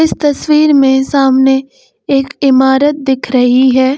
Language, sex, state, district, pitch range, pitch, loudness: Hindi, female, Uttar Pradesh, Lucknow, 265-290 Hz, 270 Hz, -10 LUFS